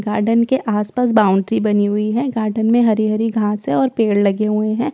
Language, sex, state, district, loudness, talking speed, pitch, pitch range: Hindi, female, Bihar, Katihar, -17 LUFS, 220 wpm, 215 Hz, 210-230 Hz